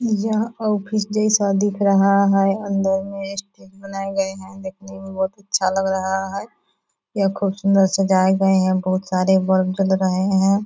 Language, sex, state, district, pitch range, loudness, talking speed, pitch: Hindi, female, Bihar, Purnia, 190-200 Hz, -19 LUFS, 175 wpm, 195 Hz